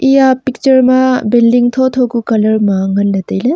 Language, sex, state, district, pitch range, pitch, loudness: Wancho, female, Arunachal Pradesh, Longding, 215-260 Hz, 245 Hz, -11 LUFS